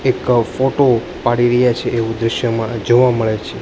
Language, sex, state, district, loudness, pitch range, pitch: Gujarati, male, Gujarat, Gandhinagar, -16 LUFS, 115-125 Hz, 120 Hz